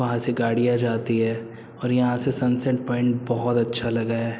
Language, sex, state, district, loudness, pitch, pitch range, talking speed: Hindi, male, Uttar Pradesh, Muzaffarnagar, -23 LUFS, 120 Hz, 115-125 Hz, 190 wpm